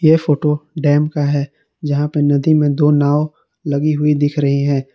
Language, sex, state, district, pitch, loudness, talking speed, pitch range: Hindi, male, Jharkhand, Palamu, 150 Hz, -16 LUFS, 195 wpm, 145-150 Hz